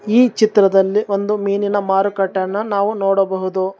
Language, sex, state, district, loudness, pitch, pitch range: Kannada, male, Karnataka, Bangalore, -17 LUFS, 200 Hz, 195-210 Hz